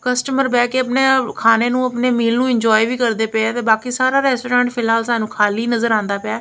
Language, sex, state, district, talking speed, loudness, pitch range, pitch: Punjabi, female, Punjab, Kapurthala, 225 wpm, -16 LUFS, 225-250 Hz, 240 Hz